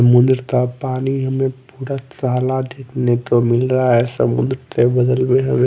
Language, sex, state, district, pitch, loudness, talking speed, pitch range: Hindi, male, Odisha, Malkangiri, 130 Hz, -17 LUFS, 170 wpm, 125-130 Hz